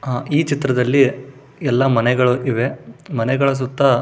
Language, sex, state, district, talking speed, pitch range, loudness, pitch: Kannada, male, Karnataka, Shimoga, 135 wpm, 125-140 Hz, -18 LUFS, 130 Hz